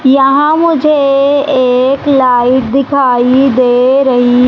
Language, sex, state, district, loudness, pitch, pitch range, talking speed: Hindi, female, Madhya Pradesh, Umaria, -9 LUFS, 270 Hz, 250-280 Hz, 95 wpm